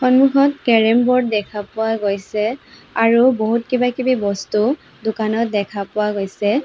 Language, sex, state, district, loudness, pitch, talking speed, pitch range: Assamese, female, Assam, Sonitpur, -18 LUFS, 225 Hz, 135 wpm, 210-250 Hz